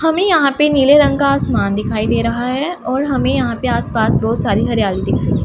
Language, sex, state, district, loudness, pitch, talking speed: Hindi, female, Punjab, Pathankot, -15 LUFS, 275 Hz, 240 wpm